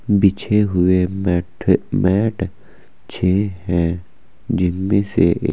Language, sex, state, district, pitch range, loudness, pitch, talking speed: Hindi, male, Uttar Pradesh, Saharanpur, 90-100 Hz, -18 LUFS, 95 Hz, 75 wpm